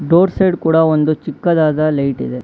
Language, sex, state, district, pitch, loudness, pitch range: Kannada, male, Karnataka, Bangalore, 160 Hz, -15 LUFS, 150-170 Hz